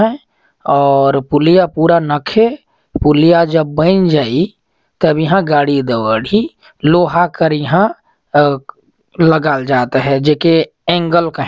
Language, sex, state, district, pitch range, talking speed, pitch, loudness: Chhattisgarhi, male, Chhattisgarh, Jashpur, 145-175 Hz, 120 wpm, 160 Hz, -13 LUFS